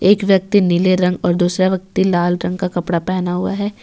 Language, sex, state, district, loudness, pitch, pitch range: Hindi, female, Jharkhand, Ranchi, -16 LUFS, 185 Hz, 175-190 Hz